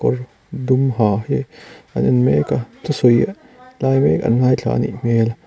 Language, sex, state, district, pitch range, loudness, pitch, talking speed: Mizo, male, Mizoram, Aizawl, 115-145 Hz, -18 LUFS, 125 Hz, 165 wpm